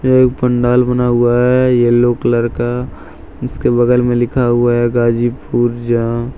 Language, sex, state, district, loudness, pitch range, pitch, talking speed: Hindi, male, Jharkhand, Deoghar, -13 LUFS, 120-125 Hz, 120 Hz, 160 wpm